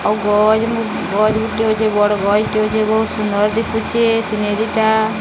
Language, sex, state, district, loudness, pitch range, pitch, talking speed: Odia, female, Odisha, Sambalpur, -16 LUFS, 210-220 Hz, 215 Hz, 105 wpm